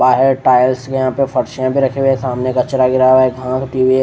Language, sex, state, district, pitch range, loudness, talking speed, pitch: Hindi, male, Odisha, Nuapada, 130-135 Hz, -14 LUFS, 210 wpm, 130 Hz